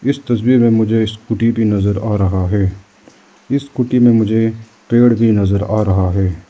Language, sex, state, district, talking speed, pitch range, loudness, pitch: Hindi, male, Arunachal Pradesh, Lower Dibang Valley, 185 wpm, 100-115 Hz, -14 LUFS, 110 Hz